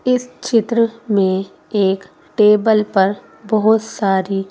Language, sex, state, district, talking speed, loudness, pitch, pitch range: Hindi, female, Madhya Pradesh, Bhopal, 120 wpm, -16 LUFS, 210 Hz, 195-225 Hz